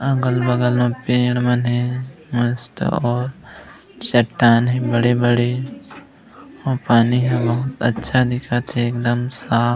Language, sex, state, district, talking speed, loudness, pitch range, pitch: Chhattisgarhi, male, Chhattisgarh, Raigarh, 125 wpm, -18 LUFS, 120-125 Hz, 120 Hz